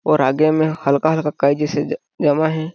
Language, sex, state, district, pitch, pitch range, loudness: Hindi, male, Chhattisgarh, Balrampur, 150 Hz, 145-155 Hz, -18 LUFS